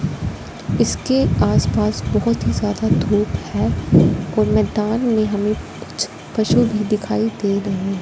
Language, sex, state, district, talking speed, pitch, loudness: Hindi, female, Punjab, Fazilka, 135 wpm, 205 Hz, -19 LUFS